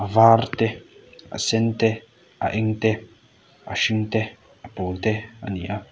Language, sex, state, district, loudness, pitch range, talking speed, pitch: Mizo, male, Mizoram, Aizawl, -23 LUFS, 110-115 Hz, 170 wpm, 110 Hz